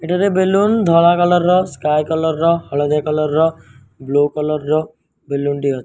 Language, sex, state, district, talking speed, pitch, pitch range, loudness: Odia, male, Odisha, Malkangiri, 185 wpm, 155 Hz, 145-175 Hz, -16 LUFS